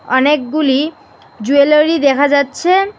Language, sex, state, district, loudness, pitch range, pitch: Bengali, female, West Bengal, Alipurduar, -13 LUFS, 275-310 Hz, 285 Hz